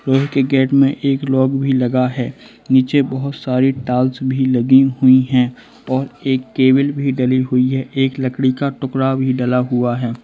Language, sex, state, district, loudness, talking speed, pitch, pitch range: Hindi, male, Bihar, Muzaffarpur, -16 LUFS, 190 wpm, 130 Hz, 130-135 Hz